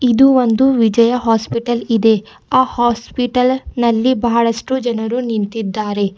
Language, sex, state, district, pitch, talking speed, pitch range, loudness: Kannada, female, Karnataka, Bidar, 235 Hz, 105 wpm, 225-250 Hz, -15 LUFS